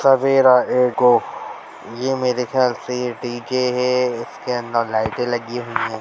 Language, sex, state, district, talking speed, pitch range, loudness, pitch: Hindi, male, Bihar, Jamui, 140 wpm, 120-125 Hz, -19 LUFS, 125 Hz